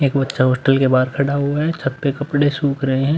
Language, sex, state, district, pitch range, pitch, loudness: Hindi, male, Uttar Pradesh, Muzaffarnagar, 135-145 Hz, 140 Hz, -18 LUFS